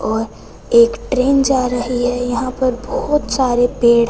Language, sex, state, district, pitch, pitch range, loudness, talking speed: Hindi, female, Punjab, Fazilka, 250 Hz, 245-270 Hz, -16 LUFS, 160 wpm